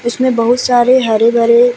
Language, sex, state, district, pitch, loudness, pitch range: Hindi, female, Bihar, Vaishali, 240 Hz, -11 LUFS, 235-250 Hz